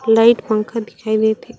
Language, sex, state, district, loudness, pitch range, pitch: Chhattisgarhi, female, Chhattisgarh, Raigarh, -17 LUFS, 215-230 Hz, 220 Hz